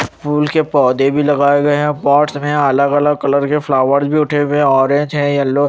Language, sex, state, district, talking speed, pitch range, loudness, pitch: Hindi, male, Chandigarh, Chandigarh, 200 wpm, 140-150 Hz, -14 LUFS, 145 Hz